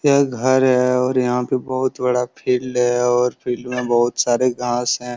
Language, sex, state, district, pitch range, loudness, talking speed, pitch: Hindi, male, Uttar Pradesh, Hamirpur, 125-130 Hz, -18 LUFS, 210 wpm, 125 Hz